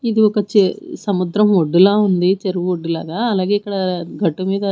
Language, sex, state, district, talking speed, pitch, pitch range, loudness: Telugu, female, Andhra Pradesh, Manyam, 140 wpm, 195 Hz, 180-210 Hz, -17 LUFS